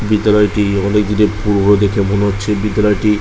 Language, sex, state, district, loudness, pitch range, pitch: Bengali, male, West Bengal, Malda, -14 LUFS, 100-105 Hz, 105 Hz